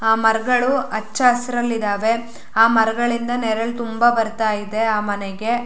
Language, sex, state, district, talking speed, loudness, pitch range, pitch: Kannada, female, Karnataka, Shimoga, 150 wpm, -19 LUFS, 220-240 Hz, 225 Hz